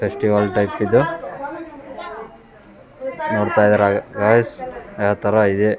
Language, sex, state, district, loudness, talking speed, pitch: Kannada, male, Karnataka, Raichur, -18 LUFS, 95 wpm, 105 Hz